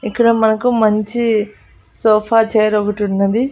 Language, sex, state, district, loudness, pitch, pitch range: Telugu, female, Andhra Pradesh, Annamaya, -15 LUFS, 220 Hz, 210-230 Hz